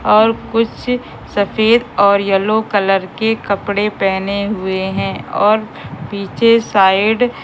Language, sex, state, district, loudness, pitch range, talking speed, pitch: Hindi, female, Madhya Pradesh, Katni, -15 LUFS, 195-225 Hz, 120 wpm, 205 Hz